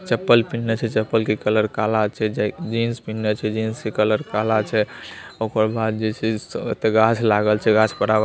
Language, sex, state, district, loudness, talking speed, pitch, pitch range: Maithili, male, Bihar, Saharsa, -21 LUFS, 195 wpm, 110 Hz, 110-115 Hz